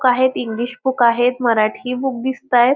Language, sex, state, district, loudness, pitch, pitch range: Marathi, female, Maharashtra, Pune, -18 LUFS, 250 Hz, 240-260 Hz